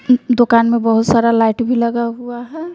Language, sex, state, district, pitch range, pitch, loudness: Hindi, female, Bihar, West Champaran, 230-245 Hz, 235 Hz, -14 LUFS